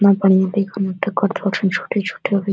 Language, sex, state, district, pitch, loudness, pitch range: Bhojpuri, male, Uttar Pradesh, Deoria, 195 Hz, -19 LUFS, 195-200 Hz